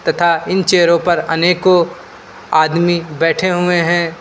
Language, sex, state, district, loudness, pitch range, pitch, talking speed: Hindi, male, Uttar Pradesh, Lucknow, -14 LUFS, 165-180 Hz, 170 Hz, 130 wpm